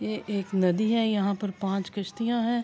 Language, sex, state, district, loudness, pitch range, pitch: Urdu, female, Andhra Pradesh, Anantapur, -27 LUFS, 195-225 Hz, 200 Hz